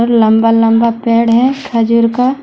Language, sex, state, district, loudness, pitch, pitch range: Hindi, female, Jharkhand, Deoghar, -11 LUFS, 230 Hz, 230-240 Hz